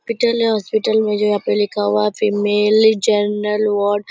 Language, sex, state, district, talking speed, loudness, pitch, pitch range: Hindi, female, Bihar, Purnia, 175 wpm, -16 LUFS, 210 Hz, 205-220 Hz